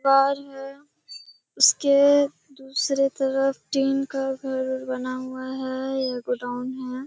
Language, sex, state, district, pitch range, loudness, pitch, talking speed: Hindi, female, Bihar, Kishanganj, 260-275 Hz, -23 LUFS, 270 Hz, 120 wpm